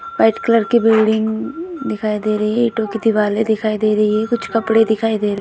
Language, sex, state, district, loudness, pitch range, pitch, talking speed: Hindi, female, Uttar Pradesh, Budaun, -17 LUFS, 215-225 Hz, 220 Hz, 220 wpm